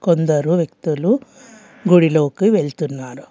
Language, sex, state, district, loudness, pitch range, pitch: Telugu, female, Telangana, Hyderabad, -17 LUFS, 155-215 Hz, 170 Hz